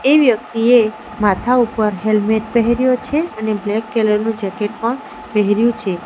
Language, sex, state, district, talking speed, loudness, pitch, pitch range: Gujarati, female, Gujarat, Valsad, 150 wpm, -16 LUFS, 220 Hz, 210-240 Hz